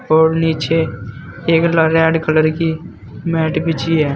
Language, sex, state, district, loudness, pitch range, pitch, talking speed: Hindi, male, Uttar Pradesh, Saharanpur, -15 LUFS, 155-165 Hz, 160 Hz, 145 wpm